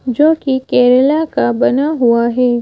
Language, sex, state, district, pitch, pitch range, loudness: Hindi, female, Madhya Pradesh, Bhopal, 260 Hz, 245-295 Hz, -13 LUFS